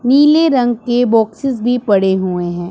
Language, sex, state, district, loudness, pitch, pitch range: Hindi, female, Punjab, Pathankot, -14 LUFS, 240 Hz, 190-255 Hz